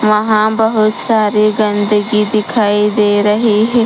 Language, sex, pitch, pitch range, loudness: Hindi, female, 215 Hz, 210-220 Hz, -12 LUFS